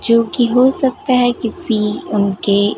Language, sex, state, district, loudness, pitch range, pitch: Hindi, female, Gujarat, Gandhinagar, -14 LUFS, 210-250 Hz, 230 Hz